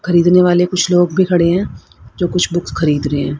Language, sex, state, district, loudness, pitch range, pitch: Hindi, female, Haryana, Rohtak, -14 LUFS, 170-180 Hz, 175 Hz